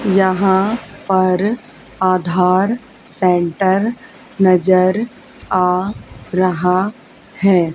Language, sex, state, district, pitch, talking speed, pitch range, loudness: Hindi, female, Haryana, Charkhi Dadri, 190 Hz, 60 wpm, 185-215 Hz, -16 LUFS